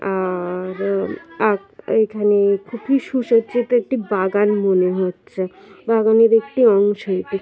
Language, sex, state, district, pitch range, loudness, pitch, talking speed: Bengali, female, West Bengal, Jhargram, 190-230 Hz, -18 LUFS, 205 Hz, 105 wpm